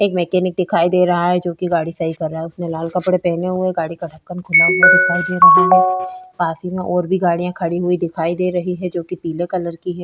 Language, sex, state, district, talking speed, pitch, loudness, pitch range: Hindi, female, Bihar, Vaishali, 275 wpm, 180 Hz, -16 LUFS, 170-185 Hz